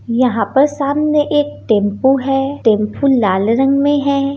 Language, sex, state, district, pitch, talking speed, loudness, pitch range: Hindi, female, Bihar, Gopalganj, 270 Hz, 150 wpm, -14 LUFS, 230-285 Hz